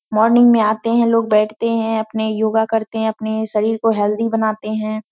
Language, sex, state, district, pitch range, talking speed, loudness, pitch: Hindi, female, Bihar, Purnia, 215-225 Hz, 200 wpm, -17 LUFS, 220 Hz